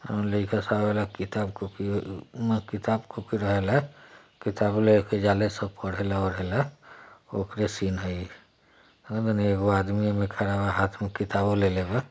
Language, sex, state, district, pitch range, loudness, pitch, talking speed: Bhojpuri, male, Bihar, East Champaran, 100-105 Hz, -27 LUFS, 105 Hz, 115 wpm